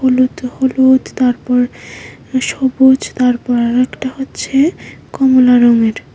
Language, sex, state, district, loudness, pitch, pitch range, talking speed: Bengali, female, Tripura, West Tripura, -13 LUFS, 255 Hz, 245-265 Hz, 90 wpm